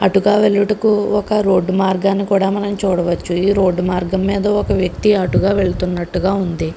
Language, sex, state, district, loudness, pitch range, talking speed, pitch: Telugu, female, Andhra Pradesh, Krishna, -16 LUFS, 180-200 Hz, 150 wpm, 195 Hz